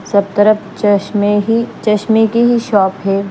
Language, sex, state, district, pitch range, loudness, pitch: Hindi, female, Punjab, Fazilka, 200-225 Hz, -13 LUFS, 210 Hz